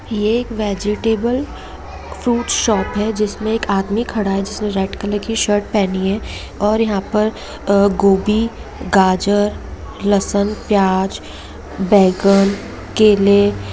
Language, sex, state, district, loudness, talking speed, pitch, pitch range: Hindi, female, Bihar, Madhepura, -16 LUFS, 120 wpm, 205 Hz, 195-215 Hz